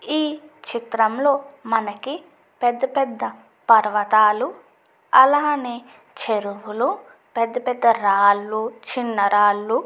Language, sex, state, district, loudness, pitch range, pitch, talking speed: Telugu, female, Andhra Pradesh, Chittoor, -20 LUFS, 215-270 Hz, 235 Hz, 80 wpm